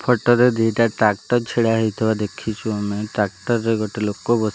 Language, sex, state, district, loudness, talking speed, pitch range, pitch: Odia, male, Odisha, Malkangiri, -20 LUFS, 185 wpm, 105-115 Hz, 110 Hz